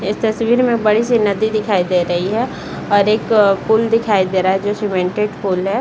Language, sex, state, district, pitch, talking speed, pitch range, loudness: Hindi, female, Bihar, Saran, 210 Hz, 235 wpm, 195-220 Hz, -16 LUFS